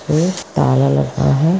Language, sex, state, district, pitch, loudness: Hindi, female, Bihar, East Champaran, 140 Hz, -16 LUFS